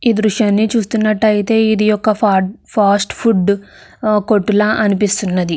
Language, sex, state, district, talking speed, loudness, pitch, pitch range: Telugu, female, Andhra Pradesh, Krishna, 130 wpm, -14 LUFS, 210 Hz, 205-220 Hz